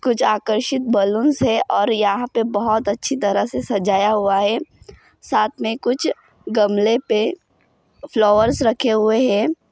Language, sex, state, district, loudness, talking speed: Hindi, male, Maharashtra, Dhule, -18 LUFS, 140 wpm